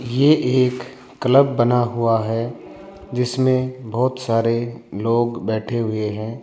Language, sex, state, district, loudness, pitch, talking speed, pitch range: Hindi, male, Rajasthan, Jaipur, -20 LUFS, 120 Hz, 120 wpm, 115-130 Hz